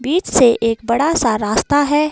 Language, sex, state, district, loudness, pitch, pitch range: Hindi, female, Himachal Pradesh, Shimla, -15 LUFS, 255 Hz, 230-295 Hz